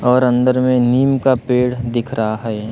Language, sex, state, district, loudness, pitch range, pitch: Hindi, male, Maharashtra, Gondia, -16 LUFS, 120-130 Hz, 125 Hz